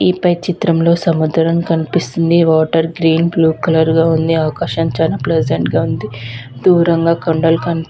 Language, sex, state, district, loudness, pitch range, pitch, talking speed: Telugu, female, Andhra Pradesh, Visakhapatnam, -14 LUFS, 160-170 Hz, 165 Hz, 150 wpm